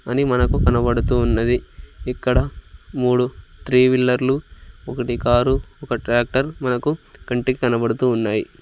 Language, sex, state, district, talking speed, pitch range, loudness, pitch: Telugu, male, Andhra Pradesh, Sri Satya Sai, 110 wpm, 115-130 Hz, -20 LUFS, 125 Hz